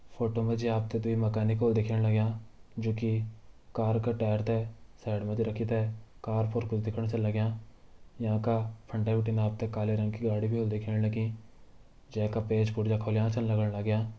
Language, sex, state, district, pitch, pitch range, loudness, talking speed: Garhwali, male, Uttarakhand, Tehri Garhwal, 110 Hz, 110-115 Hz, -31 LUFS, 195 wpm